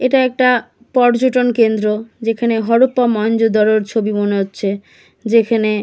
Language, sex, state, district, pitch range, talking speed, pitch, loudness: Bengali, female, West Bengal, Kolkata, 215-245 Hz, 105 wpm, 225 Hz, -15 LUFS